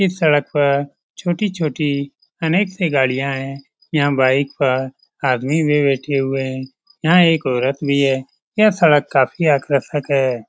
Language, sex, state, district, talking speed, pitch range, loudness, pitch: Hindi, male, Bihar, Lakhisarai, 160 wpm, 135-155 Hz, -17 LUFS, 140 Hz